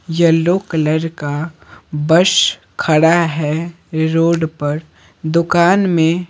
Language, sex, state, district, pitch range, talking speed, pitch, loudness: Hindi, male, Bihar, Patna, 155-170 Hz, 95 wpm, 165 Hz, -15 LUFS